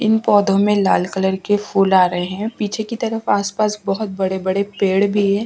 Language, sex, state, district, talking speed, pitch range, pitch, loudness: Hindi, female, Delhi, New Delhi, 210 wpm, 190-210 Hz, 200 Hz, -18 LUFS